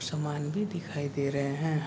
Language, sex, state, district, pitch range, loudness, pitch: Hindi, male, Bihar, Kishanganj, 140-160 Hz, -32 LUFS, 150 Hz